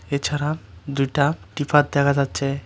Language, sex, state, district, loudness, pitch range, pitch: Bengali, male, Tripura, West Tripura, -22 LUFS, 140-145 Hz, 140 Hz